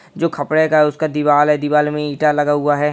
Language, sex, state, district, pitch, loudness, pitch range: Hindi, male, Bihar, Purnia, 150 Hz, -16 LUFS, 145-155 Hz